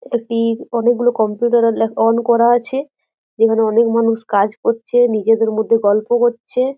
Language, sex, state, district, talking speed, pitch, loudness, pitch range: Bengali, female, West Bengal, Jhargram, 150 wpm, 230 Hz, -15 LUFS, 225-240 Hz